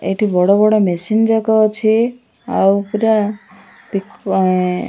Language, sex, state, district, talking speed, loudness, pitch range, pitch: Odia, female, Odisha, Malkangiri, 110 wpm, -15 LUFS, 195-220 Hz, 210 Hz